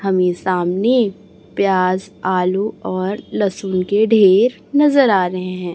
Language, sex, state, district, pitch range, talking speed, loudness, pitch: Hindi, male, Chhattisgarh, Raipur, 185-210 Hz, 125 wpm, -16 LUFS, 190 Hz